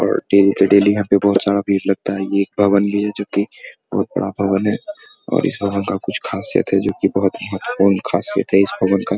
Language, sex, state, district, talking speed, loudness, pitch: Hindi, male, Bihar, Muzaffarpur, 250 wpm, -17 LUFS, 100 Hz